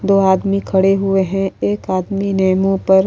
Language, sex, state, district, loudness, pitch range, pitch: Hindi, female, Uttar Pradesh, Jalaun, -16 LUFS, 190-195 Hz, 195 Hz